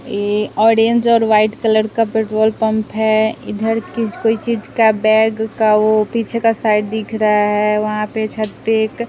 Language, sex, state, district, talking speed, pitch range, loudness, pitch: Hindi, female, Bihar, West Champaran, 185 wpm, 215-225 Hz, -16 LUFS, 220 Hz